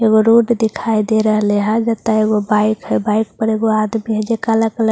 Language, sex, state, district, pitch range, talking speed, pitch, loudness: Hindi, female, Bihar, Katihar, 215-225 Hz, 220 wpm, 220 Hz, -15 LUFS